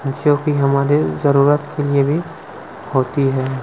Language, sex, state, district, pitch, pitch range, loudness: Hindi, male, Chhattisgarh, Sukma, 140 Hz, 135-145 Hz, -17 LUFS